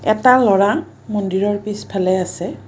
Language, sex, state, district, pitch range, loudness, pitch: Assamese, female, Assam, Kamrup Metropolitan, 190-210 Hz, -17 LUFS, 205 Hz